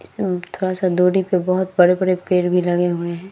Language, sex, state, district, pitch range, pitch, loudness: Hindi, female, Bihar, Vaishali, 180-185 Hz, 180 Hz, -18 LUFS